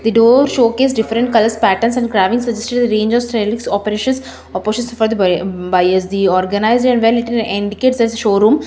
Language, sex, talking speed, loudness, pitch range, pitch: English, female, 175 wpm, -14 LUFS, 205-240 Hz, 225 Hz